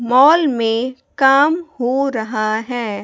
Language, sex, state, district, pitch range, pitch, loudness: Hindi, female, Bihar, West Champaran, 225-275 Hz, 250 Hz, -16 LUFS